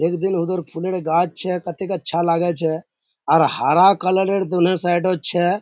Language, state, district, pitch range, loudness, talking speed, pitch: Surjapuri, Bihar, Kishanganj, 170-185 Hz, -19 LUFS, 160 wpm, 180 Hz